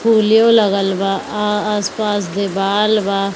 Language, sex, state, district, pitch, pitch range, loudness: Hindi, female, Bihar, Kishanganj, 205 Hz, 195-215 Hz, -15 LUFS